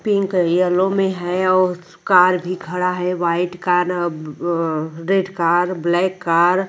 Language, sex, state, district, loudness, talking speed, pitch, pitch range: Hindi, female, Bihar, Vaishali, -18 LUFS, 150 wpm, 180 Hz, 175-185 Hz